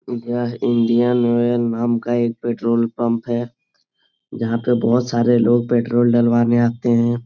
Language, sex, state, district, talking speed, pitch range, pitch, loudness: Hindi, male, Bihar, Supaul, 150 wpm, 115-120 Hz, 120 Hz, -18 LUFS